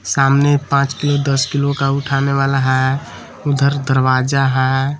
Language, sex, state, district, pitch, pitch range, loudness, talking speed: Hindi, male, Jharkhand, Palamu, 135 Hz, 135-140 Hz, -16 LUFS, 145 wpm